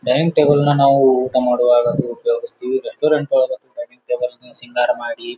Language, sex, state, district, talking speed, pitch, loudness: Kannada, male, Karnataka, Bijapur, 180 wpm, 140 Hz, -17 LUFS